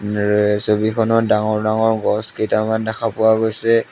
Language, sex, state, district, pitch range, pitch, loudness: Assamese, male, Assam, Sonitpur, 105-110 Hz, 110 Hz, -17 LUFS